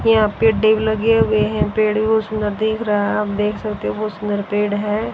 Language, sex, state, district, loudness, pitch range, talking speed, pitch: Hindi, female, Haryana, Rohtak, -18 LUFS, 210-220 Hz, 235 wpm, 215 Hz